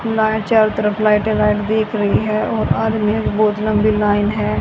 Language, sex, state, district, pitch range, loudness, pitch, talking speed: Hindi, female, Haryana, Rohtak, 210-220 Hz, -16 LUFS, 215 Hz, 195 wpm